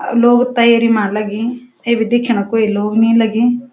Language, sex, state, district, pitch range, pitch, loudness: Garhwali, female, Uttarakhand, Uttarkashi, 220-240 Hz, 230 Hz, -14 LUFS